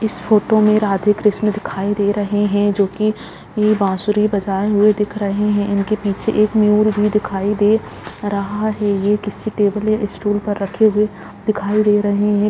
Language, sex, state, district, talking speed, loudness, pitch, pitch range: Hindi, female, Bihar, Madhepura, 185 wpm, -17 LUFS, 210 Hz, 205-215 Hz